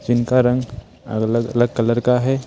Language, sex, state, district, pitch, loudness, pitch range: Hindi, male, Rajasthan, Jaipur, 120 Hz, -18 LUFS, 115-125 Hz